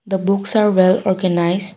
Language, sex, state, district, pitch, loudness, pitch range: English, female, Assam, Kamrup Metropolitan, 190 Hz, -16 LUFS, 185-200 Hz